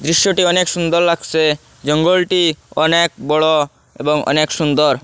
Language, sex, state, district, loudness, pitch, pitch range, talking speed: Bengali, male, Assam, Hailakandi, -15 LUFS, 160 Hz, 150-170 Hz, 120 wpm